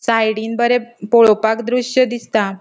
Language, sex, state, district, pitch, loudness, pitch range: Konkani, female, Goa, North and South Goa, 230 Hz, -16 LUFS, 220-240 Hz